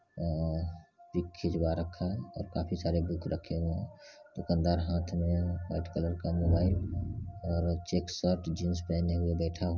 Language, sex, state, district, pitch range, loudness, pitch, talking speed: Hindi, male, Bihar, Saran, 85-90 Hz, -33 LUFS, 85 Hz, 185 wpm